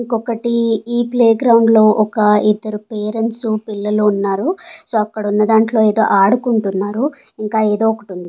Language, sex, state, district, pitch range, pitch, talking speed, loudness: Telugu, female, Andhra Pradesh, Sri Satya Sai, 210-230 Hz, 220 Hz, 145 wpm, -15 LUFS